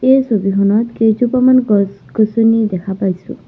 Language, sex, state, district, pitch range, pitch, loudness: Assamese, female, Assam, Sonitpur, 200-245 Hz, 220 Hz, -14 LUFS